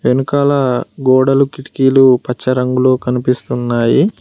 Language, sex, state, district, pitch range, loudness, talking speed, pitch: Telugu, male, Telangana, Mahabubabad, 125-135 Hz, -13 LUFS, 85 wpm, 130 Hz